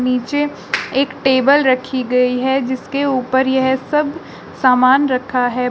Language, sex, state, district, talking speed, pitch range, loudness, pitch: Hindi, female, Uttar Pradesh, Shamli, 135 wpm, 255-275 Hz, -16 LUFS, 260 Hz